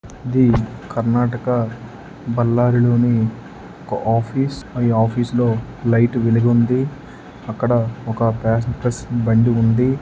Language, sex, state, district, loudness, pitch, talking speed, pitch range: Telugu, male, Karnataka, Bellary, -18 LUFS, 120 Hz, 40 wpm, 115-120 Hz